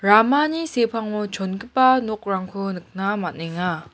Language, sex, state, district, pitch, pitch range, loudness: Garo, female, Meghalaya, West Garo Hills, 205 Hz, 190-230 Hz, -22 LUFS